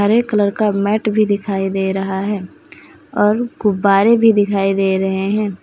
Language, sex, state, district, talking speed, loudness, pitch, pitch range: Hindi, female, Jharkhand, Deoghar, 170 wpm, -16 LUFS, 205 Hz, 195-215 Hz